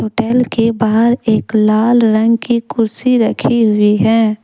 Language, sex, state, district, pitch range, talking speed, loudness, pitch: Hindi, female, Jharkhand, Deoghar, 220-235 Hz, 150 wpm, -13 LUFS, 225 Hz